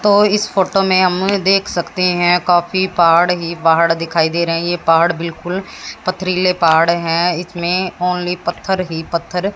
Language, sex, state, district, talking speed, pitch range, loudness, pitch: Hindi, female, Haryana, Jhajjar, 170 wpm, 170-185 Hz, -15 LUFS, 175 Hz